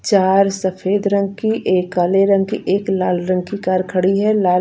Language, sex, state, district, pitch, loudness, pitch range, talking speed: Hindi, female, Punjab, Fazilka, 195 Hz, -17 LUFS, 185-200 Hz, 220 wpm